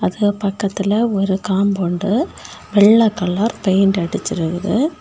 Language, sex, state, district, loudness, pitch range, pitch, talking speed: Tamil, female, Tamil Nadu, Kanyakumari, -17 LUFS, 190-215 Hz, 200 Hz, 95 wpm